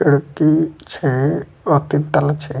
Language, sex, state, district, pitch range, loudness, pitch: Bajjika, male, Bihar, Vaishali, 140-155 Hz, -18 LUFS, 145 Hz